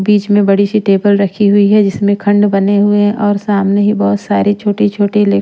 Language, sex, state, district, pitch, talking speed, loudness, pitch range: Hindi, female, Punjab, Pathankot, 205 Hz, 220 wpm, -11 LUFS, 200-205 Hz